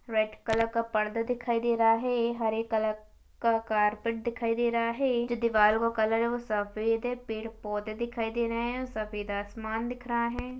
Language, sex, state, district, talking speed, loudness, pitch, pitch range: Hindi, female, Chhattisgarh, Balrampur, 200 wpm, -29 LUFS, 230 Hz, 220-235 Hz